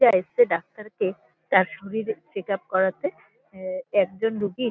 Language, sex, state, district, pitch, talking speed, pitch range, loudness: Bengali, female, West Bengal, Kolkata, 200 Hz, 125 wpm, 190-220 Hz, -25 LUFS